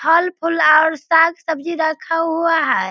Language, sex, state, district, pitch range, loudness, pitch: Hindi, female, Bihar, Sitamarhi, 320-335 Hz, -16 LUFS, 330 Hz